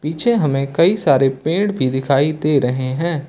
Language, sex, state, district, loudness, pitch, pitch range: Hindi, male, Uttar Pradesh, Lucknow, -17 LUFS, 145 Hz, 135-165 Hz